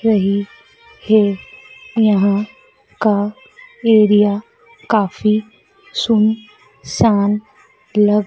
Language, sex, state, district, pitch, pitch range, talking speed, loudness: Hindi, female, Madhya Pradesh, Dhar, 215 Hz, 205-225 Hz, 65 wpm, -16 LUFS